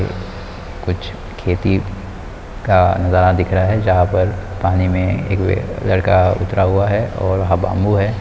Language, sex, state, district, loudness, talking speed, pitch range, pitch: Hindi, male, Bihar, Kishanganj, -16 LUFS, 160 wpm, 90-100 Hz, 95 Hz